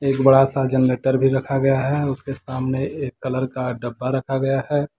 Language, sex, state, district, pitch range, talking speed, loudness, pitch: Hindi, male, Jharkhand, Deoghar, 130-135 Hz, 205 wpm, -20 LUFS, 135 Hz